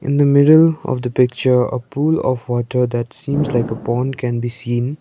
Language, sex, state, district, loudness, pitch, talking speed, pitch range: English, male, Sikkim, Gangtok, -17 LUFS, 125 Hz, 215 wpm, 120-140 Hz